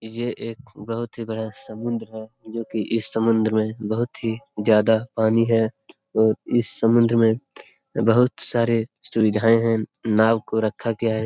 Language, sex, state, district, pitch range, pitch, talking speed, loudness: Hindi, male, Jharkhand, Sahebganj, 110-115 Hz, 115 Hz, 155 wpm, -22 LUFS